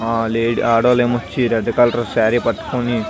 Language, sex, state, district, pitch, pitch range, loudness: Telugu, male, Andhra Pradesh, Visakhapatnam, 115 Hz, 115-120 Hz, -17 LUFS